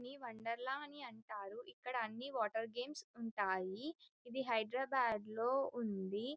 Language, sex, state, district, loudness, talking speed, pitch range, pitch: Telugu, female, Telangana, Karimnagar, -42 LUFS, 115 wpm, 220-270 Hz, 240 Hz